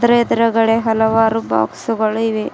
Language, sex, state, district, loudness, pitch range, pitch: Kannada, female, Karnataka, Bidar, -16 LUFS, 220-230 Hz, 225 Hz